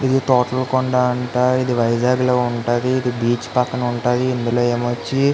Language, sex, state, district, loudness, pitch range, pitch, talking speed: Telugu, male, Andhra Pradesh, Visakhapatnam, -18 LUFS, 120-130 Hz, 125 Hz, 180 wpm